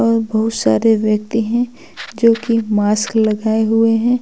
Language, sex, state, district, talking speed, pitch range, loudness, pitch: Hindi, female, Uttar Pradesh, Lucknow, 140 wpm, 215-230 Hz, -16 LUFS, 225 Hz